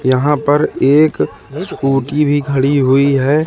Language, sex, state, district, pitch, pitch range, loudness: Hindi, male, Madhya Pradesh, Katni, 140 Hz, 135-145 Hz, -13 LUFS